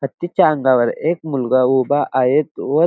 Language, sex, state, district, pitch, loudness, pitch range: Marathi, male, Maharashtra, Dhule, 135 Hz, -17 LUFS, 130-155 Hz